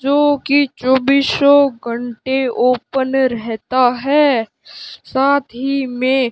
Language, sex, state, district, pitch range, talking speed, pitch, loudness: Hindi, male, Rajasthan, Bikaner, 250-280 Hz, 105 wpm, 265 Hz, -15 LUFS